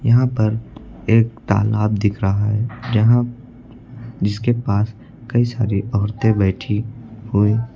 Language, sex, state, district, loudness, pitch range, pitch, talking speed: Hindi, male, Uttar Pradesh, Lucknow, -19 LUFS, 105-120 Hz, 115 Hz, 115 wpm